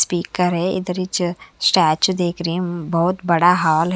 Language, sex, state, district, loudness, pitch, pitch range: Hindi, female, Haryana, Charkhi Dadri, -18 LUFS, 175 Hz, 170-185 Hz